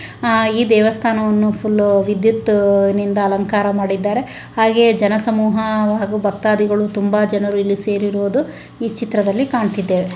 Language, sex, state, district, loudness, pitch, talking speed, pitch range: Kannada, female, Karnataka, Raichur, -16 LUFS, 210 Hz, 100 wpm, 200-220 Hz